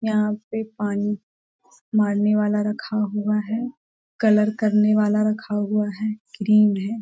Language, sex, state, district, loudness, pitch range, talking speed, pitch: Hindi, female, Jharkhand, Sahebganj, -22 LUFS, 210-215 Hz, 135 wpm, 210 Hz